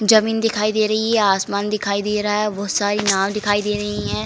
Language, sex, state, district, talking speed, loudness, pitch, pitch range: Hindi, female, Uttar Pradesh, Varanasi, 240 wpm, -19 LUFS, 210 Hz, 200-215 Hz